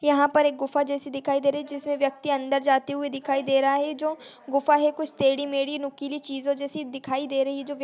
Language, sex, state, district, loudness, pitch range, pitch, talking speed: Hindi, female, Chhattisgarh, Kabirdham, -25 LUFS, 275-290 Hz, 280 Hz, 250 wpm